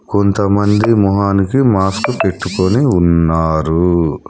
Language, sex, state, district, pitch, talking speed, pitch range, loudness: Telugu, male, Telangana, Hyderabad, 100 Hz, 70 wpm, 85-105 Hz, -13 LUFS